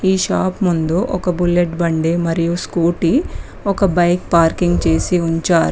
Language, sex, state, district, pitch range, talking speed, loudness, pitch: Telugu, female, Telangana, Mahabubabad, 165-180 Hz, 135 wpm, -16 LUFS, 175 Hz